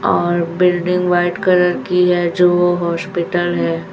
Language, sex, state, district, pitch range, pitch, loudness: Hindi, female, Chhattisgarh, Raipur, 170-180 Hz, 175 Hz, -15 LUFS